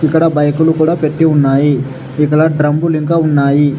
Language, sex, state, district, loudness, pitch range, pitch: Telugu, male, Telangana, Adilabad, -12 LUFS, 145-160 Hz, 150 Hz